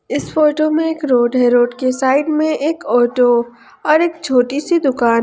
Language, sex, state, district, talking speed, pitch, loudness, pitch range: Hindi, female, Jharkhand, Ranchi, 195 wpm, 270 Hz, -15 LUFS, 245-310 Hz